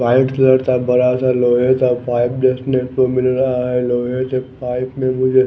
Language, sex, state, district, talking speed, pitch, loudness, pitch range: Hindi, male, Bihar, West Champaran, 200 wpm, 130 Hz, -16 LUFS, 125-130 Hz